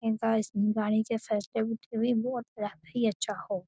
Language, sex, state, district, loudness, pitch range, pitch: Hindi, female, Bihar, Darbhanga, -30 LUFS, 210-230 Hz, 220 Hz